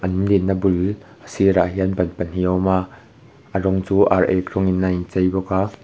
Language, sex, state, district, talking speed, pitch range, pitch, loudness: Mizo, male, Mizoram, Aizawl, 215 wpm, 90-100 Hz, 95 Hz, -19 LUFS